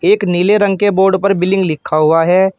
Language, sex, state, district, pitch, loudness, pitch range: Hindi, male, Uttar Pradesh, Shamli, 190 Hz, -12 LUFS, 175-200 Hz